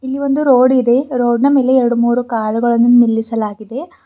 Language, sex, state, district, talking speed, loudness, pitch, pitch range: Kannada, female, Karnataka, Bidar, 150 wpm, -13 LUFS, 245 Hz, 235-265 Hz